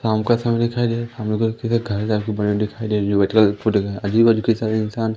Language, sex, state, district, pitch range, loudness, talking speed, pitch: Hindi, male, Madhya Pradesh, Umaria, 105-115 Hz, -19 LUFS, 290 wpm, 110 Hz